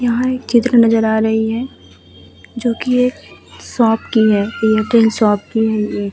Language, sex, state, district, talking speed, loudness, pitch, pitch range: Hindi, female, Uttar Pradesh, Muzaffarnagar, 155 wpm, -15 LUFS, 225 Hz, 215-240 Hz